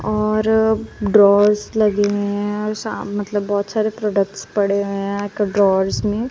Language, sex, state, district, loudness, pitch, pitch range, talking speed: Hindi, female, Punjab, Kapurthala, -18 LUFS, 205 Hz, 200-215 Hz, 150 wpm